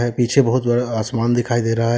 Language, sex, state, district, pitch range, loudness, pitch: Hindi, male, Jharkhand, Deoghar, 115-120 Hz, -18 LUFS, 120 Hz